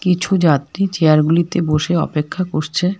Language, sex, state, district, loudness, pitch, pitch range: Bengali, female, West Bengal, Alipurduar, -16 LUFS, 170 Hz, 155-180 Hz